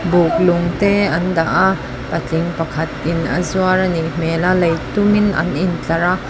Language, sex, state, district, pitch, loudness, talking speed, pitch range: Mizo, female, Mizoram, Aizawl, 170 Hz, -17 LUFS, 180 wpm, 165-185 Hz